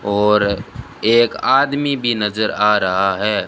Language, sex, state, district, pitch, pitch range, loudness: Hindi, male, Rajasthan, Bikaner, 110 Hz, 105-120 Hz, -16 LUFS